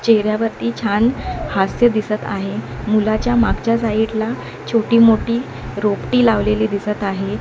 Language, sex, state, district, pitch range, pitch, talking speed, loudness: Marathi, female, Maharashtra, Mumbai Suburban, 210-230 Hz, 215 Hz, 120 wpm, -18 LUFS